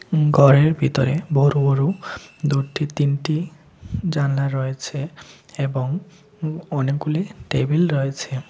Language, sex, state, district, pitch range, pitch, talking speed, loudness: Bengali, male, Tripura, West Tripura, 140-155 Hz, 145 Hz, 90 wpm, -21 LUFS